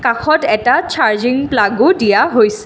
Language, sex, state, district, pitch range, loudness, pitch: Assamese, female, Assam, Kamrup Metropolitan, 215-275 Hz, -13 LUFS, 240 Hz